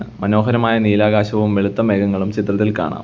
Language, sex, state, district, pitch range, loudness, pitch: Malayalam, male, Kerala, Kollam, 100-105 Hz, -17 LUFS, 105 Hz